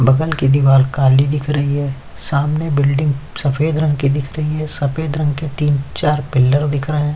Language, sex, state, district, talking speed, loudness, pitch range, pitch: Hindi, male, Chhattisgarh, Kabirdham, 200 wpm, -16 LUFS, 140-150 Hz, 145 Hz